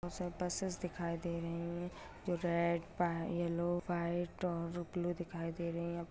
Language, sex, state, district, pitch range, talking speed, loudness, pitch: Hindi, female, Bihar, Kishanganj, 170-175 Hz, 175 wpm, -39 LUFS, 170 Hz